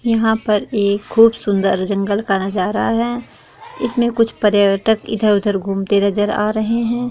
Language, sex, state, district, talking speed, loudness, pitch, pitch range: Hindi, female, Bihar, East Champaran, 150 wpm, -17 LUFS, 210 Hz, 200-230 Hz